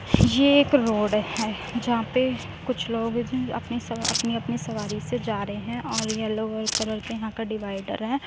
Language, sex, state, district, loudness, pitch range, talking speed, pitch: Hindi, female, Uttar Pradesh, Muzaffarnagar, -25 LUFS, 220-240 Hz, 195 wpm, 225 Hz